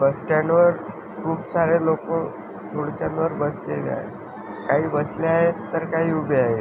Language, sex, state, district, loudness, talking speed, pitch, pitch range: Marathi, male, Maharashtra, Sindhudurg, -22 LUFS, 135 wpm, 160 Hz, 145-165 Hz